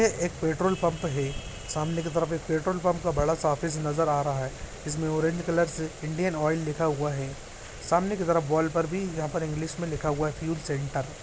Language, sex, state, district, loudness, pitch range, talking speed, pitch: Hindi, male, Bihar, Araria, -28 LUFS, 150-170 Hz, 225 wpm, 160 Hz